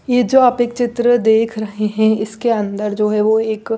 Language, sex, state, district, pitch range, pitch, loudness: Hindi, female, Bihar, Patna, 215-240 Hz, 220 Hz, -16 LUFS